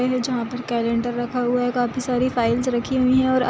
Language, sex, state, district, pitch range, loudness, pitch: Hindi, female, Bihar, Sitamarhi, 240-255 Hz, -21 LUFS, 245 Hz